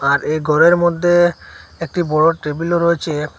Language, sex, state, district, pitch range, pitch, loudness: Bengali, male, Assam, Hailakandi, 150-175 Hz, 165 Hz, -15 LUFS